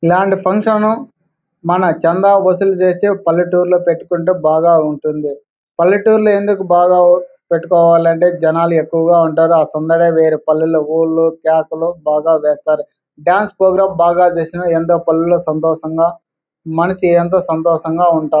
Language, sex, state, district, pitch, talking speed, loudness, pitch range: Telugu, male, Andhra Pradesh, Anantapur, 170 Hz, 110 wpm, -13 LUFS, 160-180 Hz